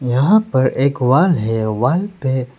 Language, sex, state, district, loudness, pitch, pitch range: Hindi, male, Arunachal Pradesh, Lower Dibang Valley, -16 LUFS, 130 Hz, 125-165 Hz